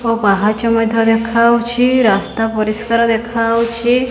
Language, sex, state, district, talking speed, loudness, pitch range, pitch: Odia, female, Odisha, Khordha, 100 wpm, -14 LUFS, 225-235 Hz, 230 Hz